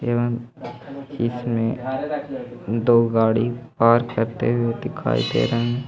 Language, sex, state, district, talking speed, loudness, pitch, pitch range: Hindi, male, Bihar, Gaya, 100 wpm, -22 LUFS, 120 Hz, 115-130 Hz